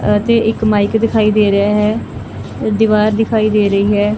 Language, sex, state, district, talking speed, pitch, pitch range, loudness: Punjabi, female, Punjab, Fazilka, 185 wpm, 210 Hz, 200-220 Hz, -13 LUFS